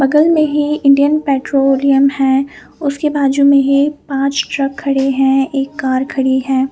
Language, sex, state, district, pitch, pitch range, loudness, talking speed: Hindi, female, Punjab, Fazilka, 275 Hz, 270-285 Hz, -14 LUFS, 160 wpm